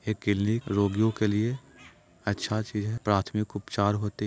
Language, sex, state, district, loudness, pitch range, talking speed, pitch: Hindi, male, Bihar, Jahanabad, -28 LUFS, 100-110 Hz, 155 wpm, 105 Hz